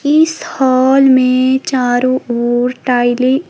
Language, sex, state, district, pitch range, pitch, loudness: Hindi, female, Himachal Pradesh, Shimla, 250-270 Hz, 255 Hz, -12 LUFS